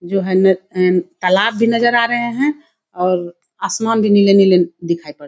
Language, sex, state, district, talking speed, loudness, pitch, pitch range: Hindi, female, Bihar, Kishanganj, 195 wpm, -15 LUFS, 190 Hz, 180-230 Hz